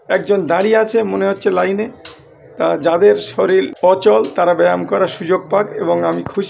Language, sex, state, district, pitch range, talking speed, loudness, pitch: Bengali, male, West Bengal, North 24 Parganas, 165-215 Hz, 165 wpm, -15 LUFS, 190 Hz